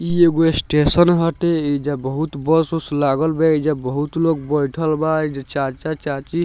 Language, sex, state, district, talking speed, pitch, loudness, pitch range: Bhojpuri, male, Bihar, Muzaffarpur, 170 wpm, 155 Hz, -18 LUFS, 145-165 Hz